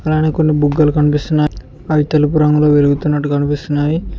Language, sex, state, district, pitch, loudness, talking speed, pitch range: Telugu, male, Telangana, Mahabubabad, 150 Hz, -14 LUFS, 130 wpm, 145-155 Hz